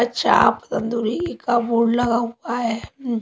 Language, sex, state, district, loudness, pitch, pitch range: Hindi, female, Haryana, Rohtak, -20 LUFS, 235 Hz, 230-240 Hz